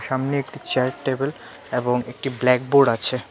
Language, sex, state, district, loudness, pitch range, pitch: Bengali, male, Tripura, West Tripura, -21 LUFS, 125-140 Hz, 130 Hz